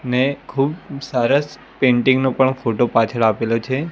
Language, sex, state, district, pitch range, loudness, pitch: Gujarati, male, Gujarat, Gandhinagar, 120-140 Hz, -18 LUFS, 130 Hz